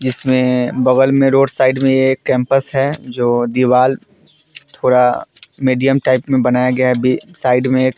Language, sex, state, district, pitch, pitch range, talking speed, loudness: Hindi, male, Bihar, Vaishali, 130 Hz, 125-135 Hz, 165 wpm, -14 LUFS